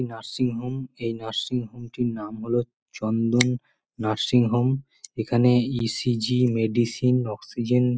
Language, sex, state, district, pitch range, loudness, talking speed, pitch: Bengali, male, West Bengal, Malda, 115-125 Hz, -25 LUFS, 120 wpm, 120 Hz